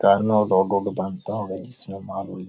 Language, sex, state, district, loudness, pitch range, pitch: Hindi, male, Bihar, Jahanabad, -17 LUFS, 95-105 Hz, 100 Hz